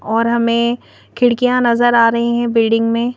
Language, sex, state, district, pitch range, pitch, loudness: Hindi, female, Madhya Pradesh, Bhopal, 230-240 Hz, 235 Hz, -14 LUFS